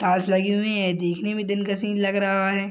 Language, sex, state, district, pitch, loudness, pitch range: Hindi, male, Bihar, Madhepura, 195 Hz, -22 LUFS, 190-205 Hz